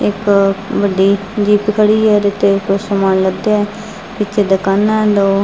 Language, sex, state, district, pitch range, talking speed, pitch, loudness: Punjabi, female, Punjab, Fazilka, 195-210 Hz, 165 wpm, 200 Hz, -13 LUFS